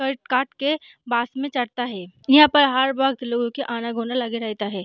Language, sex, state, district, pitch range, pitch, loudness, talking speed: Hindi, female, Maharashtra, Chandrapur, 235-270 Hz, 250 Hz, -21 LUFS, 220 wpm